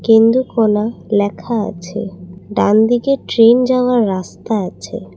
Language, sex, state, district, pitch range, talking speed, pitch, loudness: Bengali, female, Assam, Kamrup Metropolitan, 200-240 Hz, 95 wpm, 220 Hz, -15 LUFS